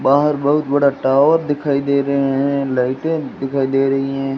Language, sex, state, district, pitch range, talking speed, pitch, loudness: Hindi, male, Rajasthan, Jaisalmer, 135-145 Hz, 180 wpm, 140 Hz, -17 LUFS